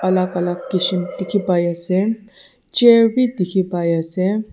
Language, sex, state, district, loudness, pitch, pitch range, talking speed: Nagamese, male, Nagaland, Dimapur, -18 LUFS, 185 Hz, 180-220 Hz, 90 wpm